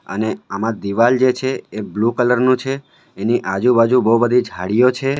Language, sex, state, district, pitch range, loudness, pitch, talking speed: Gujarati, male, Gujarat, Valsad, 110-130 Hz, -17 LUFS, 120 Hz, 185 wpm